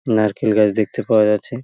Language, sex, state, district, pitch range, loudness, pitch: Bengali, male, West Bengal, Paschim Medinipur, 105-115 Hz, -17 LUFS, 110 Hz